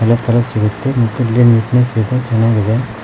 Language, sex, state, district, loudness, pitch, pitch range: Kannada, male, Karnataka, Koppal, -14 LUFS, 115 Hz, 110-125 Hz